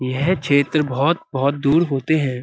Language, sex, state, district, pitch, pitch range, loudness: Hindi, male, Uttar Pradesh, Budaun, 140 Hz, 135-160 Hz, -19 LUFS